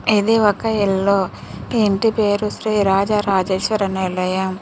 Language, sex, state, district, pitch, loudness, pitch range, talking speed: Telugu, female, Telangana, Mahabubabad, 200 Hz, -18 LUFS, 190-215 Hz, 130 wpm